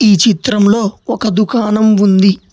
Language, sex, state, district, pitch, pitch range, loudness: Telugu, male, Telangana, Hyderabad, 210 Hz, 200-225 Hz, -11 LUFS